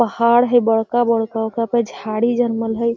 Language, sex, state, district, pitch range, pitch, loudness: Magahi, female, Bihar, Gaya, 225-240 Hz, 230 Hz, -17 LUFS